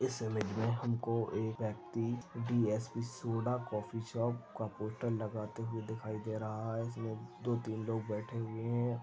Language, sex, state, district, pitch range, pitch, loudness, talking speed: Hindi, male, Chhattisgarh, Balrampur, 110-120 Hz, 115 Hz, -38 LUFS, 160 wpm